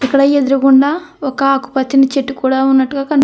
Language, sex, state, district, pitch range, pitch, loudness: Telugu, female, Andhra Pradesh, Krishna, 265-275 Hz, 275 Hz, -13 LUFS